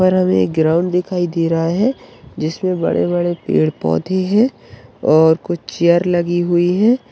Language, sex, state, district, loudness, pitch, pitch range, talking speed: Hindi, male, Bihar, Bhagalpur, -16 LUFS, 175 Hz, 165-185 Hz, 160 wpm